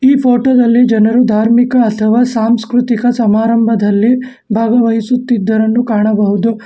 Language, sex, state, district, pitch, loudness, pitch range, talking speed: Kannada, male, Karnataka, Bangalore, 230 Hz, -11 LUFS, 220-245 Hz, 90 wpm